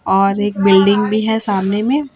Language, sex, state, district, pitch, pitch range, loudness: Hindi, female, Chhattisgarh, Raipur, 200 Hz, 195-220 Hz, -14 LUFS